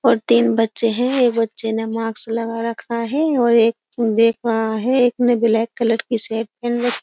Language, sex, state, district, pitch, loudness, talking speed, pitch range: Hindi, female, Uttar Pradesh, Jyotiba Phule Nagar, 230 Hz, -17 LUFS, 215 wpm, 225-240 Hz